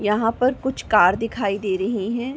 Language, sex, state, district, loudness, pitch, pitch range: Hindi, female, Uttar Pradesh, Gorakhpur, -21 LUFS, 220 Hz, 200-245 Hz